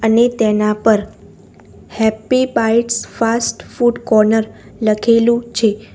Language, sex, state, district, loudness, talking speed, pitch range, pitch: Gujarati, female, Gujarat, Valsad, -15 LUFS, 100 wpm, 220-235 Hz, 225 Hz